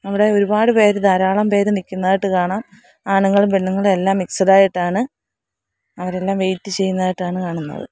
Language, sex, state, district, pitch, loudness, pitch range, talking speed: Malayalam, female, Kerala, Kollam, 195 Hz, -17 LUFS, 185-205 Hz, 120 wpm